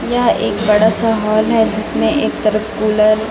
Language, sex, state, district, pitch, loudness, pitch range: Hindi, female, Chhattisgarh, Raipur, 215 Hz, -14 LUFS, 215-220 Hz